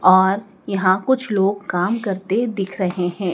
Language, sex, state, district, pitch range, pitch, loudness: Hindi, female, Madhya Pradesh, Dhar, 185-205 Hz, 195 Hz, -20 LUFS